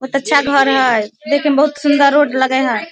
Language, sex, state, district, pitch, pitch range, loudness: Maithili, female, Bihar, Samastipur, 275 Hz, 260-290 Hz, -13 LUFS